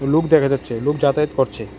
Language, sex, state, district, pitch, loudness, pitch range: Bengali, male, Tripura, West Tripura, 140 Hz, -18 LUFS, 130-150 Hz